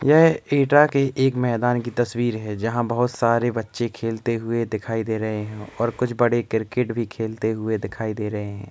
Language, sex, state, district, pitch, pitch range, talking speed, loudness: Hindi, male, Uttar Pradesh, Etah, 115 Hz, 110-120 Hz, 200 wpm, -22 LUFS